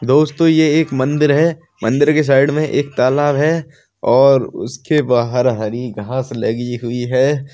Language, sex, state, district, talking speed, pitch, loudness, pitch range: Hindi, male, Bihar, Samastipur, 160 wpm, 135 Hz, -15 LUFS, 125-150 Hz